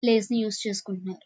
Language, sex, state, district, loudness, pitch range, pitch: Telugu, female, Andhra Pradesh, Visakhapatnam, -27 LUFS, 195-225 Hz, 215 Hz